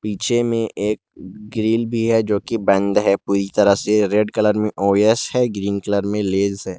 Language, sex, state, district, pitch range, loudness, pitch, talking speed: Hindi, male, Jharkhand, Garhwa, 100-110 Hz, -18 LUFS, 105 Hz, 210 wpm